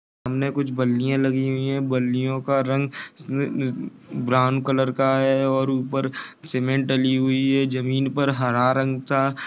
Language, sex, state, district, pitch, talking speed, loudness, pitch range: Hindi, male, Maharashtra, Pune, 135 Hz, 150 wpm, -22 LUFS, 130-135 Hz